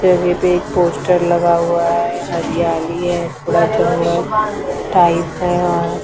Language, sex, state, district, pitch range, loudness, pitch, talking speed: Hindi, female, Maharashtra, Mumbai Suburban, 170-180 Hz, -16 LUFS, 170 Hz, 120 wpm